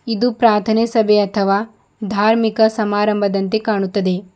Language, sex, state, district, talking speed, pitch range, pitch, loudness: Kannada, female, Karnataka, Bidar, 95 wpm, 200-225 Hz, 215 Hz, -16 LUFS